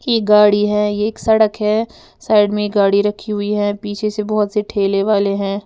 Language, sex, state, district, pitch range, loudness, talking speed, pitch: Hindi, female, Uttar Pradesh, Lalitpur, 205-215 Hz, -16 LUFS, 210 wpm, 210 Hz